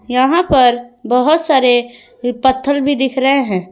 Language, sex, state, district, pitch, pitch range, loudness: Hindi, female, Jharkhand, Ranchi, 260 Hz, 245-275 Hz, -13 LUFS